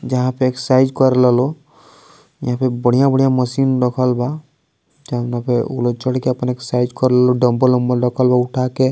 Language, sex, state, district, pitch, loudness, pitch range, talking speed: Bhojpuri, male, Bihar, East Champaran, 125 Hz, -16 LUFS, 125-130 Hz, 210 wpm